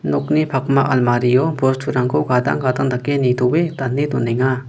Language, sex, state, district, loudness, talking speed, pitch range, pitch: Garo, male, Meghalaya, West Garo Hills, -17 LUFS, 130 wpm, 125-135 Hz, 130 Hz